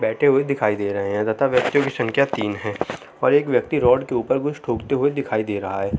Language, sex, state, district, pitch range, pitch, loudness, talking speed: Hindi, male, Uttar Pradesh, Jalaun, 105-140 Hz, 125 Hz, -21 LUFS, 260 wpm